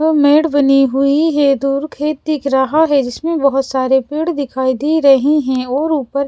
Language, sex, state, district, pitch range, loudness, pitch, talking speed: Hindi, female, Bihar, Katihar, 270-305 Hz, -14 LUFS, 280 Hz, 190 wpm